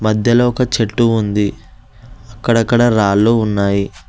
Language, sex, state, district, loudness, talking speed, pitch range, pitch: Telugu, male, Telangana, Hyderabad, -14 LUFS, 105 wpm, 105-120 Hz, 115 Hz